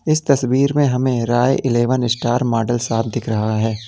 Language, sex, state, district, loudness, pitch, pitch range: Hindi, male, Uttar Pradesh, Lalitpur, -17 LUFS, 120 Hz, 115-130 Hz